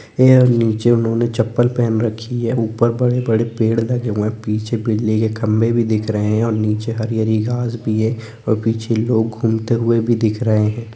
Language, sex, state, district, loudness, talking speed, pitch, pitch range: Hindi, male, Chhattisgarh, Korba, -17 LUFS, 220 wpm, 115 Hz, 110-115 Hz